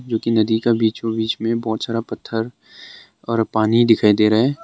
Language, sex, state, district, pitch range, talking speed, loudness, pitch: Hindi, male, Arunachal Pradesh, Longding, 110-115 Hz, 205 wpm, -18 LUFS, 115 Hz